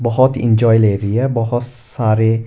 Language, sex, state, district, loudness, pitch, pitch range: Hindi, male, Himachal Pradesh, Shimla, -15 LUFS, 115 Hz, 110-120 Hz